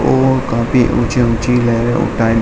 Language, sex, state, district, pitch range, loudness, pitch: Hindi, male, Uttar Pradesh, Hamirpur, 115-125 Hz, -14 LUFS, 120 Hz